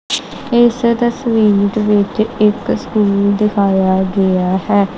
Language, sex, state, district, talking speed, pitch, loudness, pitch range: Punjabi, male, Punjab, Kapurthala, 110 wpm, 210 Hz, -14 LUFS, 200-220 Hz